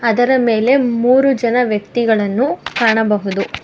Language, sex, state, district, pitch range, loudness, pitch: Kannada, female, Karnataka, Bangalore, 220-260 Hz, -15 LUFS, 240 Hz